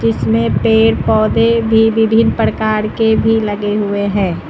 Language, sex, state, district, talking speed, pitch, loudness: Hindi, female, Uttar Pradesh, Lucknow, 145 wpm, 210 Hz, -13 LUFS